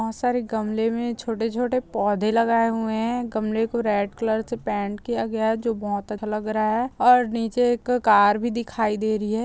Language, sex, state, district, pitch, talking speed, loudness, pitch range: Hindi, female, Chhattisgarh, Bastar, 225 Hz, 210 wpm, -23 LUFS, 215-235 Hz